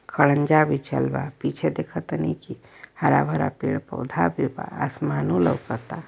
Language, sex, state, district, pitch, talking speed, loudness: Bhojpuri, female, Uttar Pradesh, Varanasi, 140 Hz, 130 wpm, -24 LUFS